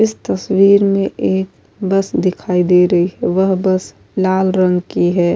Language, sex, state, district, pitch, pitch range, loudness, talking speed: Urdu, female, Uttar Pradesh, Budaun, 190 Hz, 180-195 Hz, -15 LUFS, 170 wpm